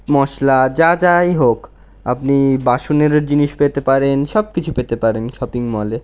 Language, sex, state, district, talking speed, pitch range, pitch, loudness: Bengali, male, West Bengal, North 24 Parganas, 160 wpm, 125-150 Hz, 140 Hz, -15 LUFS